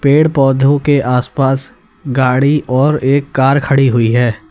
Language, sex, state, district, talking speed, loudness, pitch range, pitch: Hindi, male, Uttar Pradesh, Lalitpur, 145 wpm, -12 LUFS, 130-145 Hz, 135 Hz